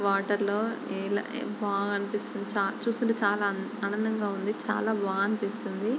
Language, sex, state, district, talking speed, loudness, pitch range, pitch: Telugu, female, Andhra Pradesh, Chittoor, 110 wpm, -29 LUFS, 200-220 Hz, 205 Hz